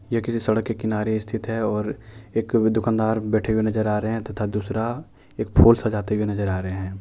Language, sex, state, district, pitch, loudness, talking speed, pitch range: Hindi, male, Jharkhand, Deoghar, 110 Hz, -23 LUFS, 225 wpm, 105-115 Hz